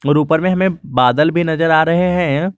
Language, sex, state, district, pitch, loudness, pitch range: Hindi, male, Jharkhand, Garhwa, 160 Hz, -14 LUFS, 150-180 Hz